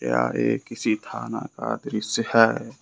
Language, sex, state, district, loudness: Hindi, male, Jharkhand, Ranchi, -24 LUFS